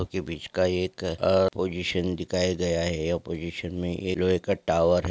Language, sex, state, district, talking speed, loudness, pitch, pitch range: Hindi, male, Maharashtra, Solapur, 190 wpm, -27 LUFS, 90 Hz, 85-90 Hz